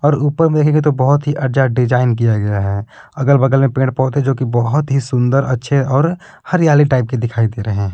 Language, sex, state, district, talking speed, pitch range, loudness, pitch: Hindi, male, Jharkhand, Palamu, 225 wpm, 125-145 Hz, -15 LUFS, 135 Hz